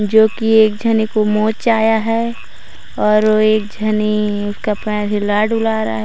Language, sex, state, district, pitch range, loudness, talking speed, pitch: Hindi, female, Chhattisgarh, Raigarh, 210-220 Hz, -15 LUFS, 160 wpm, 215 Hz